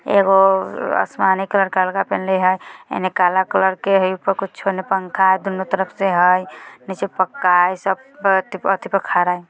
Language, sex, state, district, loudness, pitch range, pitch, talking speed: Bajjika, female, Bihar, Vaishali, -18 LUFS, 185-195 Hz, 190 Hz, 185 wpm